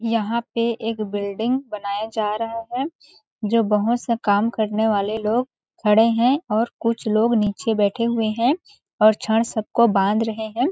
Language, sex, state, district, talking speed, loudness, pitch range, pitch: Hindi, female, Chhattisgarh, Balrampur, 160 wpm, -21 LUFS, 215-235 Hz, 225 Hz